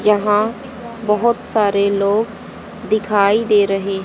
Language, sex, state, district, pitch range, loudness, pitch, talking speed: Hindi, female, Haryana, Jhajjar, 200-225 Hz, -16 LUFS, 210 Hz, 105 wpm